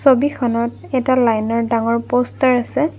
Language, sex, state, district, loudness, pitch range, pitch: Assamese, female, Assam, Kamrup Metropolitan, -17 LUFS, 230-260 Hz, 245 Hz